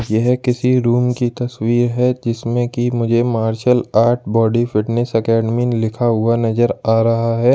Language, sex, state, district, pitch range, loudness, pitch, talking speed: Hindi, male, Jharkhand, Ranchi, 115-120 Hz, -16 LUFS, 120 Hz, 160 wpm